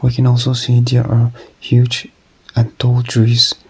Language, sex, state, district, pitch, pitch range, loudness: English, male, Nagaland, Kohima, 120 Hz, 120-125 Hz, -14 LUFS